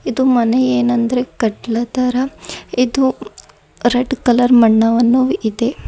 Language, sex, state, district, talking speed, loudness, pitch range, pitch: Kannada, female, Karnataka, Bidar, 90 wpm, -15 LUFS, 230-255 Hz, 245 Hz